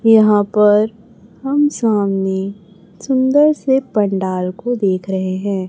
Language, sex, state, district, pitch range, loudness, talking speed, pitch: Hindi, male, Chhattisgarh, Raipur, 190-245 Hz, -16 LUFS, 115 wpm, 210 Hz